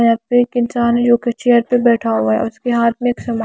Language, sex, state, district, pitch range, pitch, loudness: Hindi, female, Himachal Pradesh, Shimla, 230-245 Hz, 240 Hz, -15 LUFS